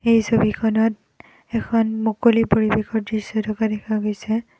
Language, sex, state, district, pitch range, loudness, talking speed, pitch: Assamese, female, Assam, Kamrup Metropolitan, 215-225 Hz, -20 LUFS, 115 wpm, 220 Hz